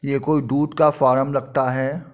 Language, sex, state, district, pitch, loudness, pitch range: Hindi, male, Uttar Pradesh, Muzaffarnagar, 140 Hz, -20 LUFS, 135-150 Hz